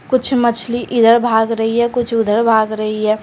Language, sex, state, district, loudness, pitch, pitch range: Hindi, female, Jharkhand, Garhwa, -15 LUFS, 230 Hz, 220-240 Hz